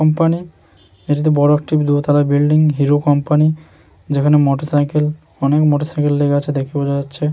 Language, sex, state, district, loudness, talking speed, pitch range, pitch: Bengali, male, West Bengal, Jhargram, -15 LUFS, 145 wpm, 145-150 Hz, 145 Hz